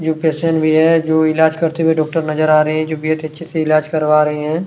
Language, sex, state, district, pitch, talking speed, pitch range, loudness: Hindi, male, Chhattisgarh, Kabirdham, 155 Hz, 270 wpm, 155-160 Hz, -15 LUFS